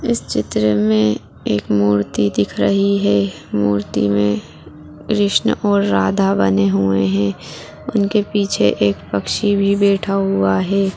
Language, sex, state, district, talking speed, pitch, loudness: Hindi, female, Bihar, Jahanabad, 130 wpm, 105 Hz, -17 LUFS